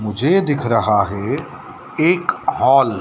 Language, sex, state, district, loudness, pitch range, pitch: Hindi, male, Madhya Pradesh, Dhar, -17 LUFS, 105-155 Hz, 120 Hz